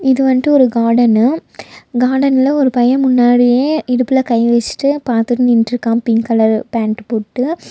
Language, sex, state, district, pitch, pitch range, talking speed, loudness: Tamil, female, Tamil Nadu, Nilgiris, 245 Hz, 230-265 Hz, 130 wpm, -13 LUFS